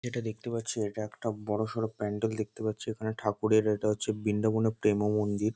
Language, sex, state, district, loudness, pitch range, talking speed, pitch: Bengali, male, West Bengal, North 24 Parganas, -31 LUFS, 105-110 Hz, 195 wpm, 110 Hz